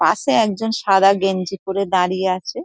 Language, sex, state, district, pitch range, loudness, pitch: Bengali, female, West Bengal, Dakshin Dinajpur, 185-200 Hz, -18 LUFS, 195 Hz